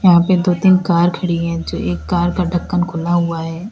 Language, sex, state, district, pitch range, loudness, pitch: Hindi, female, Uttar Pradesh, Lalitpur, 170-180 Hz, -16 LUFS, 175 Hz